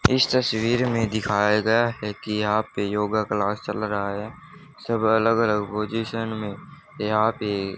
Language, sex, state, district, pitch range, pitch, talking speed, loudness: Hindi, male, Haryana, Charkhi Dadri, 105-115 Hz, 110 Hz, 160 wpm, -23 LUFS